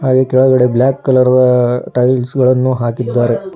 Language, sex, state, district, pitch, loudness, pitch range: Kannada, female, Karnataka, Bidar, 125 Hz, -12 LUFS, 125-130 Hz